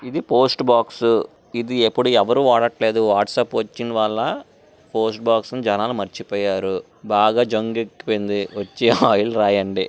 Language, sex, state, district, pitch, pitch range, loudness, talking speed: Telugu, male, Andhra Pradesh, Srikakulam, 110 Hz, 100-120 Hz, -19 LUFS, 120 wpm